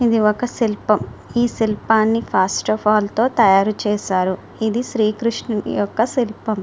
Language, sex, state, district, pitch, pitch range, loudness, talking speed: Telugu, female, Andhra Pradesh, Srikakulam, 215 Hz, 210-230 Hz, -18 LUFS, 115 wpm